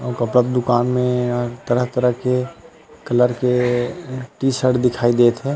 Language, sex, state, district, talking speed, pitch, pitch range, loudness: Chhattisgarhi, male, Chhattisgarh, Rajnandgaon, 170 wpm, 125 Hz, 120-130 Hz, -18 LUFS